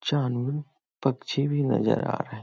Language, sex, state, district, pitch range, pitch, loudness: Hindi, male, Bihar, Muzaffarpur, 130-145 Hz, 140 Hz, -27 LUFS